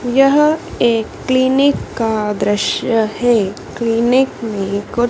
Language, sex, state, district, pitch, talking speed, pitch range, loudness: Hindi, female, Madhya Pradesh, Dhar, 235 Hz, 105 wpm, 215-260 Hz, -16 LUFS